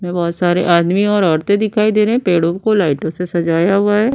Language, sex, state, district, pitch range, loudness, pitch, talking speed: Hindi, female, Uttar Pradesh, Budaun, 170-210 Hz, -15 LUFS, 180 Hz, 230 wpm